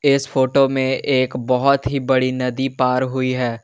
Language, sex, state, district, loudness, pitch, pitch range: Hindi, male, Jharkhand, Garhwa, -18 LUFS, 130 Hz, 130-135 Hz